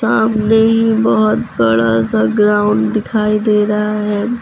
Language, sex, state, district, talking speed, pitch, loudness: Hindi, female, Uttar Pradesh, Lucknow, 135 wpm, 210 Hz, -13 LUFS